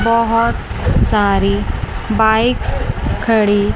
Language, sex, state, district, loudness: Hindi, female, Chandigarh, Chandigarh, -15 LUFS